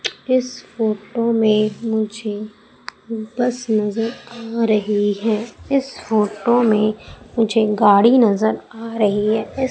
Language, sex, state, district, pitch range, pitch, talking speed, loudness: Hindi, female, Madhya Pradesh, Umaria, 215-235 Hz, 220 Hz, 115 wpm, -18 LUFS